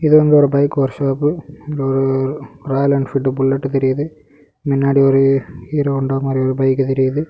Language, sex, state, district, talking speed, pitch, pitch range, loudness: Tamil, male, Tamil Nadu, Kanyakumari, 140 wpm, 135 Hz, 135-145 Hz, -16 LUFS